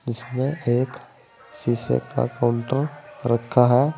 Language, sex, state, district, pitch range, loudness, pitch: Hindi, male, Uttar Pradesh, Saharanpur, 120-135 Hz, -23 LUFS, 125 Hz